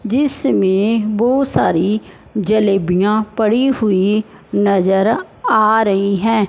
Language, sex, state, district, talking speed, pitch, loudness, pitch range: Hindi, male, Punjab, Fazilka, 90 wpm, 215 Hz, -15 LUFS, 195-225 Hz